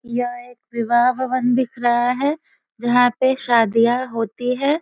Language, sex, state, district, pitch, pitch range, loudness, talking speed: Hindi, female, Bihar, Sitamarhi, 245 Hz, 240-255 Hz, -19 LUFS, 150 wpm